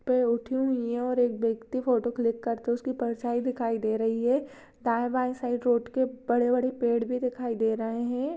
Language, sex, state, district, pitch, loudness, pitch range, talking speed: Hindi, female, Maharashtra, Chandrapur, 240 Hz, -28 LUFS, 235-255 Hz, 200 wpm